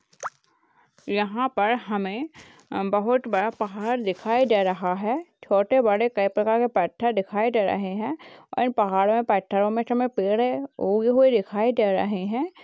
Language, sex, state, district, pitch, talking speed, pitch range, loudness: Hindi, female, Uttar Pradesh, Hamirpur, 220 Hz, 165 wpm, 200-245 Hz, -24 LUFS